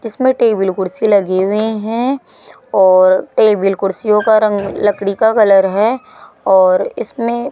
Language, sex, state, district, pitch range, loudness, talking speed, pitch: Hindi, female, Rajasthan, Jaipur, 195-225 Hz, -13 LUFS, 145 wpm, 210 Hz